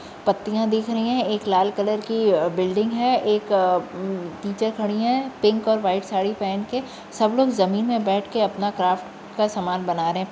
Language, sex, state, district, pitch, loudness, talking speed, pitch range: Hindi, female, Uttar Pradesh, Jyotiba Phule Nagar, 210 Hz, -22 LUFS, 205 wpm, 190-220 Hz